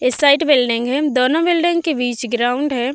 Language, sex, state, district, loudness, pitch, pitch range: Hindi, female, Uttar Pradesh, Budaun, -16 LUFS, 265 Hz, 245-300 Hz